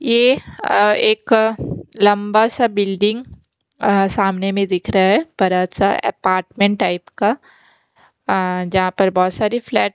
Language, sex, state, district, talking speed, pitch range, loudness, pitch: Hindi, female, Maharashtra, Mumbai Suburban, 145 wpm, 190-225 Hz, -17 LUFS, 200 Hz